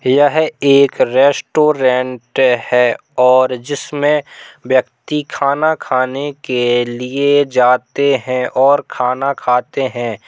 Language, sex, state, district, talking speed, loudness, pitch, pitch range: Hindi, male, Uttar Pradesh, Hamirpur, 100 wpm, -14 LUFS, 130 Hz, 125-140 Hz